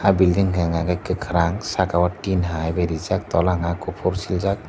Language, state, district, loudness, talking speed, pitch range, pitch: Kokborok, Tripura, Dhalai, -22 LUFS, 190 wpm, 85-95 Hz, 90 Hz